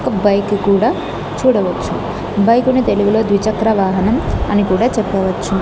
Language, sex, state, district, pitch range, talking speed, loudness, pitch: Telugu, female, Andhra Pradesh, Annamaya, 200-220 Hz, 130 wpm, -15 LUFS, 205 Hz